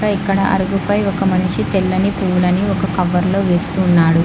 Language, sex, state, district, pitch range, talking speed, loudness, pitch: Telugu, female, Telangana, Hyderabad, 180-195 Hz, 125 wpm, -16 LUFS, 190 Hz